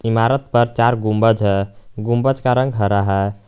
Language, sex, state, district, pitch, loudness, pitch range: Hindi, male, Jharkhand, Garhwa, 115 Hz, -17 LUFS, 100-120 Hz